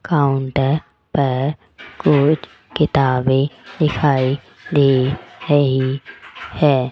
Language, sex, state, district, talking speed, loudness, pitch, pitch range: Hindi, female, Rajasthan, Jaipur, 70 wpm, -18 LUFS, 140 Hz, 130-145 Hz